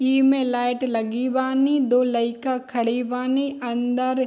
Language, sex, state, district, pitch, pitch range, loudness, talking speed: Hindi, female, Bihar, Darbhanga, 255 Hz, 245-260 Hz, -22 LUFS, 140 wpm